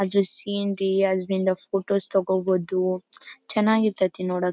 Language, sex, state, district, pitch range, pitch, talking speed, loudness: Kannada, female, Karnataka, Bellary, 185-200 Hz, 190 Hz, 120 wpm, -23 LUFS